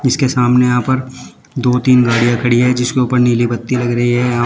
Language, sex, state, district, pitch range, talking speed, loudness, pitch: Hindi, male, Uttar Pradesh, Shamli, 120-125 Hz, 230 wpm, -13 LUFS, 125 Hz